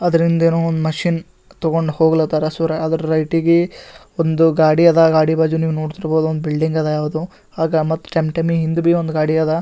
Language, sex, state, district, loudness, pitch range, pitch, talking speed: Kannada, male, Karnataka, Gulbarga, -17 LUFS, 160-165 Hz, 160 Hz, 155 wpm